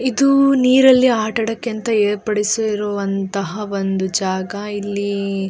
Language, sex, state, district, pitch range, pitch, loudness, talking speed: Kannada, female, Karnataka, Dakshina Kannada, 200-230 Hz, 210 Hz, -17 LUFS, 110 wpm